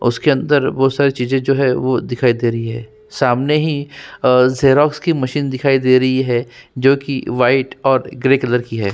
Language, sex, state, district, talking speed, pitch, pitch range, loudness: Hindi, male, Uttarakhand, Tehri Garhwal, 200 wpm, 130 Hz, 125-140 Hz, -16 LUFS